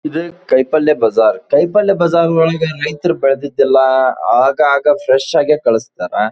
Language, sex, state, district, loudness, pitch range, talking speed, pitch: Kannada, male, Karnataka, Dharwad, -13 LUFS, 135-165 Hz, 125 wpm, 150 Hz